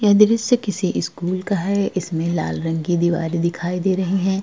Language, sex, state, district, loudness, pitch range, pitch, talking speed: Hindi, female, Uttar Pradesh, Jalaun, -20 LUFS, 170-200 Hz, 185 Hz, 205 wpm